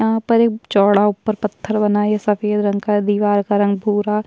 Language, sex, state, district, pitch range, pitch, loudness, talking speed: Hindi, female, Uttarakhand, Tehri Garhwal, 205-215 Hz, 210 Hz, -17 LUFS, 240 wpm